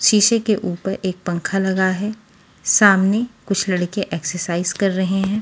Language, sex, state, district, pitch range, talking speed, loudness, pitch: Hindi, female, Delhi, New Delhi, 180-210 Hz, 155 wpm, -19 LUFS, 195 Hz